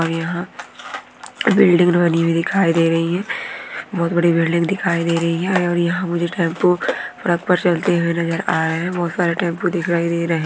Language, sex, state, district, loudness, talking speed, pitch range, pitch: Hindi, female, Goa, North and South Goa, -18 LUFS, 200 wpm, 170-180 Hz, 170 Hz